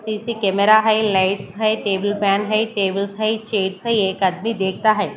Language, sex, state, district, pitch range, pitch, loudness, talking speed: Hindi, female, Maharashtra, Mumbai Suburban, 195-220 Hz, 205 Hz, -19 LUFS, 175 wpm